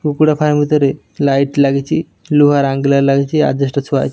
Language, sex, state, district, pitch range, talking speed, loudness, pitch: Odia, male, Odisha, Nuapada, 140-150 Hz, 160 wpm, -14 LUFS, 140 Hz